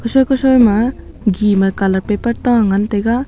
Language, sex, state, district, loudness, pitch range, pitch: Wancho, female, Arunachal Pradesh, Longding, -14 LUFS, 205-245 Hz, 225 Hz